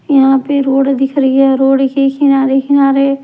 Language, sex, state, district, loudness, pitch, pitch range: Hindi, male, Delhi, New Delhi, -11 LUFS, 275 Hz, 270-275 Hz